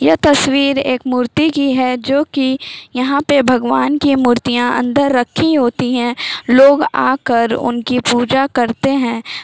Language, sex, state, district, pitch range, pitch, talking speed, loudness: Hindi, female, Bihar, Lakhisarai, 245-275 Hz, 255 Hz, 145 wpm, -14 LUFS